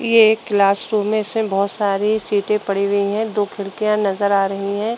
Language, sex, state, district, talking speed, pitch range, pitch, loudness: Hindi, female, Uttar Pradesh, Budaun, 215 wpm, 200-215 Hz, 205 Hz, -18 LUFS